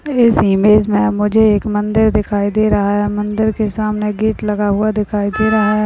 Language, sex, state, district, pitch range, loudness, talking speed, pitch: Hindi, male, Bihar, Purnia, 205-215 Hz, -14 LUFS, 205 wpm, 210 Hz